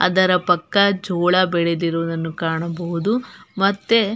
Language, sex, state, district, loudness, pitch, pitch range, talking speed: Kannada, female, Karnataka, Belgaum, -19 LUFS, 180 Hz, 170-200 Hz, 100 wpm